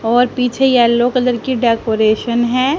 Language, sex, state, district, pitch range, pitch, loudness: Hindi, female, Haryana, Charkhi Dadri, 235-250 Hz, 245 Hz, -14 LUFS